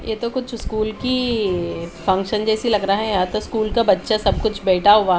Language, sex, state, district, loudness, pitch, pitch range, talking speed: Hindi, female, Haryana, Charkhi Dadri, -20 LUFS, 215 Hz, 190-225 Hz, 230 wpm